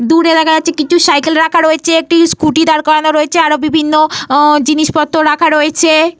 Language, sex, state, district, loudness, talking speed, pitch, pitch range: Bengali, female, Jharkhand, Jamtara, -10 LUFS, 165 wpm, 315 Hz, 305-325 Hz